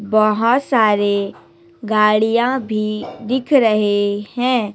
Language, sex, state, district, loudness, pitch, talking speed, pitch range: Hindi, female, Chhattisgarh, Raipur, -17 LUFS, 215 Hz, 90 wpm, 210-245 Hz